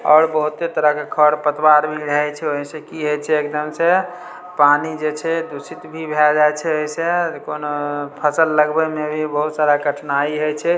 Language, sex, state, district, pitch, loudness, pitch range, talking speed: Maithili, male, Bihar, Samastipur, 150 Hz, -18 LUFS, 150-160 Hz, 195 wpm